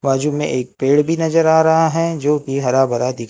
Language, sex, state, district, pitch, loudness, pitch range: Hindi, male, Maharashtra, Gondia, 150 Hz, -16 LUFS, 135-160 Hz